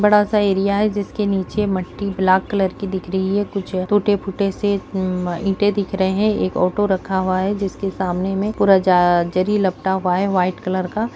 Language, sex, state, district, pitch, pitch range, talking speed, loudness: Kumaoni, female, Uttarakhand, Uttarkashi, 195 Hz, 185-205 Hz, 190 wpm, -19 LUFS